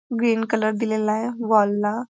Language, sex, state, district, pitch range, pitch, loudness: Marathi, female, Maharashtra, Pune, 215-230 Hz, 225 Hz, -22 LUFS